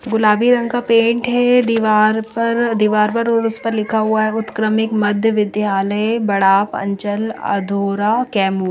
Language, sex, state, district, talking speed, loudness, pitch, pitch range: Hindi, female, Bihar, Kaimur, 150 wpm, -16 LUFS, 215 Hz, 205-230 Hz